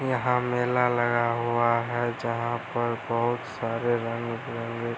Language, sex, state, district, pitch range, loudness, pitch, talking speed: Hindi, male, Bihar, Araria, 115-120 Hz, -27 LUFS, 120 Hz, 145 wpm